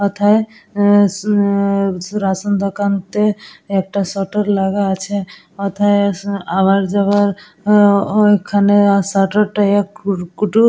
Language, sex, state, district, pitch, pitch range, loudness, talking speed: Bengali, female, West Bengal, Jalpaiguri, 200 Hz, 195-205 Hz, -15 LUFS, 100 wpm